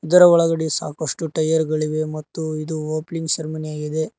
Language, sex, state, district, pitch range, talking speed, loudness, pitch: Kannada, male, Karnataka, Koppal, 155-160 Hz, 145 wpm, -21 LUFS, 155 Hz